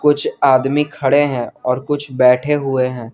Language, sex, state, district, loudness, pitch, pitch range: Hindi, male, Jharkhand, Garhwa, -16 LUFS, 135 Hz, 125-145 Hz